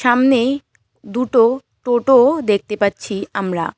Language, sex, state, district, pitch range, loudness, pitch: Bengali, female, West Bengal, Cooch Behar, 205-255 Hz, -17 LUFS, 240 Hz